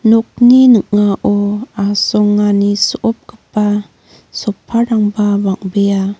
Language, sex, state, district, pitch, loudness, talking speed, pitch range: Garo, female, Meghalaya, North Garo Hills, 205 Hz, -13 LUFS, 60 wpm, 200-225 Hz